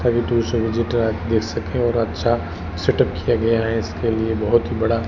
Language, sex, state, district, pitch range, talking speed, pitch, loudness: Hindi, male, Rajasthan, Jaisalmer, 110-115 Hz, 130 wpm, 115 Hz, -20 LUFS